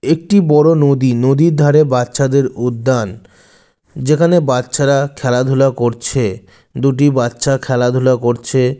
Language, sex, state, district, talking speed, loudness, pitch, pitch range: Bengali, male, West Bengal, Jalpaiguri, 100 wpm, -14 LUFS, 130 Hz, 125-145 Hz